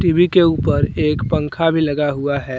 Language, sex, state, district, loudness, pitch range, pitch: Hindi, male, Jharkhand, Deoghar, -17 LUFS, 140-165 Hz, 150 Hz